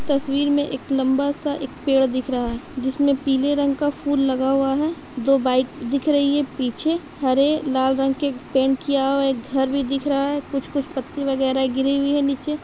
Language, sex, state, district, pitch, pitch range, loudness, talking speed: Hindi, female, Jharkhand, Sahebganj, 275 Hz, 265-285 Hz, -21 LUFS, 225 wpm